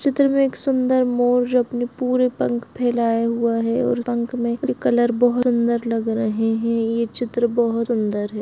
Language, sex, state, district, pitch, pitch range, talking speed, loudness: Hindi, female, Jharkhand, Jamtara, 240 Hz, 230-245 Hz, 185 wpm, -20 LUFS